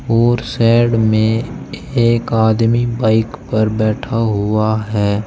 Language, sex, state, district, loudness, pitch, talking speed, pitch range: Hindi, male, Uttar Pradesh, Saharanpur, -15 LUFS, 115 Hz, 115 wpm, 110-115 Hz